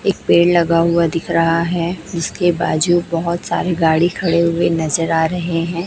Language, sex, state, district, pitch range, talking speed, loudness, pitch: Hindi, female, Chhattisgarh, Raipur, 165-175 Hz, 185 wpm, -16 LUFS, 170 Hz